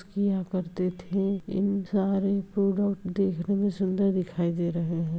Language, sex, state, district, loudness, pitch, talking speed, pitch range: Hindi, female, Uttar Pradesh, Etah, -27 LUFS, 195 Hz, 160 wpm, 180-200 Hz